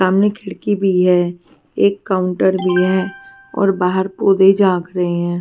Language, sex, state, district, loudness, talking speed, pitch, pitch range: Hindi, female, Punjab, Pathankot, -16 LUFS, 155 wpm, 190 Hz, 180-195 Hz